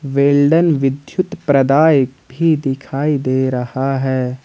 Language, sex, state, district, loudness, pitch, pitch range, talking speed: Hindi, male, Jharkhand, Ranchi, -16 LUFS, 140 Hz, 130-150 Hz, 120 wpm